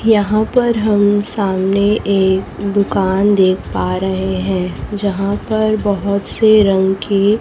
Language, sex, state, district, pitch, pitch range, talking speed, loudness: Hindi, female, Chhattisgarh, Raipur, 200 Hz, 190-210 Hz, 130 wpm, -15 LUFS